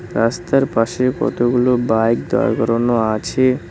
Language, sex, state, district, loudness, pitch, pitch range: Bengali, male, West Bengal, Cooch Behar, -17 LUFS, 120 Hz, 115-125 Hz